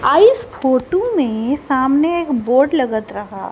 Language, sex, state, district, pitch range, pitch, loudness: Hindi, female, Haryana, Jhajjar, 250-340 Hz, 270 Hz, -16 LUFS